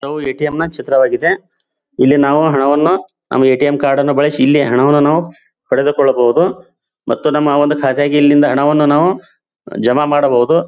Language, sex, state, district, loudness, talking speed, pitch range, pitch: Kannada, male, Karnataka, Bijapur, -13 LUFS, 135 wpm, 135-150 Hz, 145 Hz